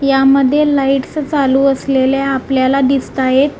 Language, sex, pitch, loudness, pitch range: Marathi, female, 275 Hz, -13 LUFS, 265-275 Hz